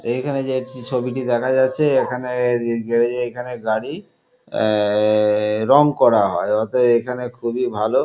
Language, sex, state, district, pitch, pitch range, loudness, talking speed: Bengali, male, West Bengal, Kolkata, 125 Hz, 115-130 Hz, -19 LUFS, 150 wpm